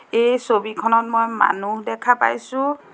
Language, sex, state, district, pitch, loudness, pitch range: Assamese, female, Assam, Sonitpur, 230 Hz, -19 LUFS, 225-245 Hz